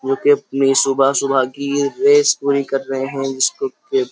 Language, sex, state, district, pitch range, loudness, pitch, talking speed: Hindi, male, Uttar Pradesh, Jyotiba Phule Nagar, 135-145 Hz, -17 LUFS, 140 Hz, 205 wpm